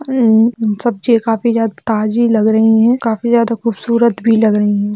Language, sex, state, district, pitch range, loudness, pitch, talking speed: Hindi, female, Bihar, Sitamarhi, 220-235 Hz, -13 LUFS, 225 Hz, 180 wpm